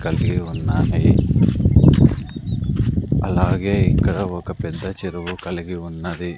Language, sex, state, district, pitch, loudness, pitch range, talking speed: Telugu, male, Andhra Pradesh, Sri Satya Sai, 90 Hz, -19 LUFS, 85-95 Hz, 85 wpm